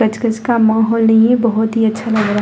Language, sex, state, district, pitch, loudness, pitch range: Hindi, female, Bihar, Kishanganj, 225 Hz, -14 LUFS, 220-230 Hz